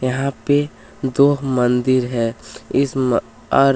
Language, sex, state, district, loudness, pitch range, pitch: Hindi, male, Chhattisgarh, Kabirdham, -19 LUFS, 125-140 Hz, 130 Hz